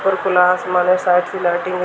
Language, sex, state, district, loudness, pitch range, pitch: Hindi, female, Bihar, Gaya, -16 LUFS, 180-185 Hz, 180 Hz